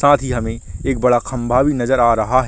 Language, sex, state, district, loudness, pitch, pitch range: Hindi, male, Chhattisgarh, Rajnandgaon, -17 LUFS, 125 Hz, 115-130 Hz